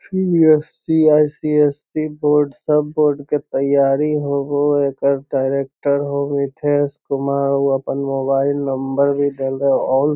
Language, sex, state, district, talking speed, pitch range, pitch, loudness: Magahi, male, Bihar, Lakhisarai, 150 wpm, 140-150 Hz, 140 Hz, -18 LUFS